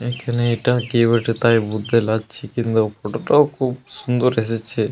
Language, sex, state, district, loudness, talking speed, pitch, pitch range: Bengali, male, Jharkhand, Jamtara, -19 LUFS, 160 wpm, 115 Hz, 110-125 Hz